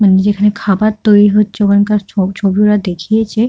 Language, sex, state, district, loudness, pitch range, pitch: Bengali, female, West Bengal, Kolkata, -12 LUFS, 195-210 Hz, 205 Hz